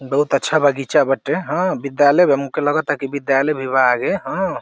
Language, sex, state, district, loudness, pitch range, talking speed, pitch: Bhojpuri, male, Uttar Pradesh, Deoria, -17 LUFS, 135-145 Hz, 180 wpm, 140 Hz